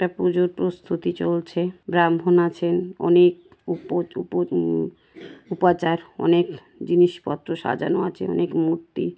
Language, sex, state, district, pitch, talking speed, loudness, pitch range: Bengali, female, West Bengal, Paschim Medinipur, 175 Hz, 90 wpm, -22 LUFS, 170-180 Hz